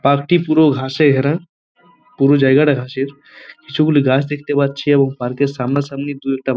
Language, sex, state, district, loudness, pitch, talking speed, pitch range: Bengali, male, West Bengal, Purulia, -16 LUFS, 140 Hz, 190 wpm, 135-145 Hz